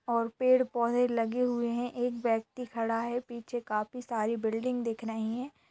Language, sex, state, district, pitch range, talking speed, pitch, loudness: Hindi, female, Bihar, Darbhanga, 230-245 Hz, 170 wpm, 235 Hz, -31 LUFS